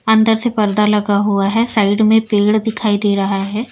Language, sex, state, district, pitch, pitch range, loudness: Hindi, female, Bihar, Patna, 210 Hz, 205-220 Hz, -15 LUFS